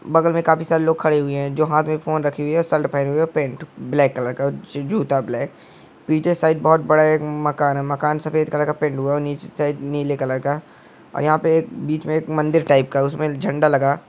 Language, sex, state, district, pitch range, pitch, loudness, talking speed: Hindi, male, West Bengal, Jhargram, 140-155 Hz, 150 Hz, -20 LUFS, 265 wpm